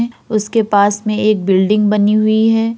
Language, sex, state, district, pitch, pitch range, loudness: Hindi, female, Uttar Pradesh, Hamirpur, 215 Hz, 205-220 Hz, -14 LUFS